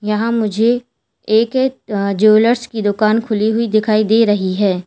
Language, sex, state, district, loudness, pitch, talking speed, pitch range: Hindi, female, Uttar Pradesh, Lalitpur, -15 LUFS, 215 Hz, 160 wpm, 210-230 Hz